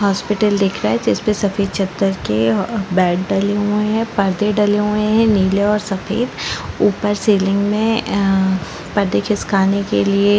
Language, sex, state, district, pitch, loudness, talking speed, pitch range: Hindi, female, Chhattisgarh, Bastar, 200 Hz, -17 LUFS, 160 wpm, 195-210 Hz